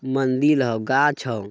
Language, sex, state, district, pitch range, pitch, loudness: Magahi, male, Bihar, Jamui, 115-140 Hz, 130 Hz, -20 LUFS